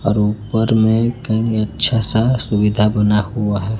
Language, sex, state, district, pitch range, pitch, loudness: Hindi, male, Chhattisgarh, Raipur, 105-115 Hz, 110 Hz, -16 LUFS